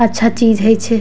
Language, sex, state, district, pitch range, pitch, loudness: Maithili, female, Bihar, Darbhanga, 225-230 Hz, 225 Hz, -13 LUFS